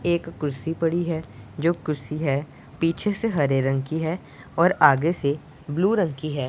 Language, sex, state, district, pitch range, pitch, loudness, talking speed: Hindi, male, Punjab, Pathankot, 140-170 Hz, 160 Hz, -24 LUFS, 185 wpm